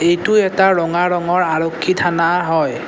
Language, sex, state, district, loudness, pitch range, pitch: Assamese, male, Assam, Kamrup Metropolitan, -15 LUFS, 170-185 Hz, 175 Hz